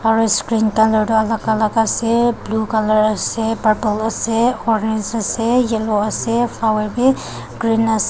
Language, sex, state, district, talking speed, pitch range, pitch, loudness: Nagamese, female, Nagaland, Dimapur, 150 wpm, 215-230 Hz, 225 Hz, -17 LUFS